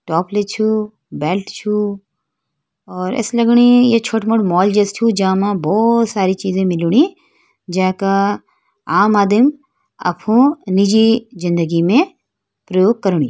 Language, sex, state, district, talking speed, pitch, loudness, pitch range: Hindi, female, Uttarakhand, Tehri Garhwal, 130 wpm, 205 Hz, -15 LUFS, 185-230 Hz